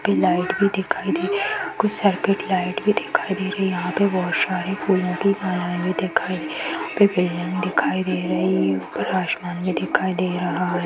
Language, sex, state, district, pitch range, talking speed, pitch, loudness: Hindi, female, Bihar, Darbhanga, 180-195 Hz, 205 wpm, 185 Hz, -22 LUFS